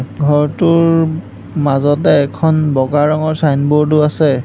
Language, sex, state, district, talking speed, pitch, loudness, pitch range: Assamese, male, Assam, Hailakandi, 105 wpm, 150 Hz, -13 LUFS, 145-155 Hz